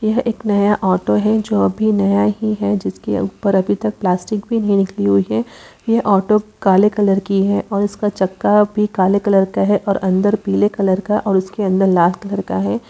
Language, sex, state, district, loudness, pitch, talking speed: Hindi, male, Chhattisgarh, Sarguja, -16 LUFS, 195 Hz, 210 wpm